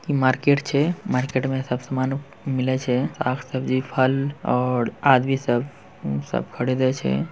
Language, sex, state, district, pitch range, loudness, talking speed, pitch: Hindi, male, Bihar, Purnia, 125-135 Hz, -23 LUFS, 155 wpm, 130 Hz